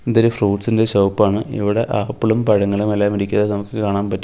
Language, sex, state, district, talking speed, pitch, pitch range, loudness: Malayalam, male, Kerala, Kollam, 185 wpm, 105 Hz, 100-110 Hz, -17 LUFS